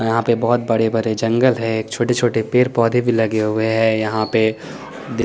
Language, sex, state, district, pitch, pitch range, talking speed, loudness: Hindi, male, Chandigarh, Chandigarh, 115 Hz, 110-120 Hz, 215 wpm, -17 LUFS